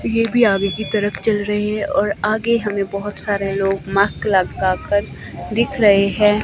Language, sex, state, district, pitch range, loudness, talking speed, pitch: Hindi, female, Himachal Pradesh, Shimla, 195-215 Hz, -18 LUFS, 175 wpm, 205 Hz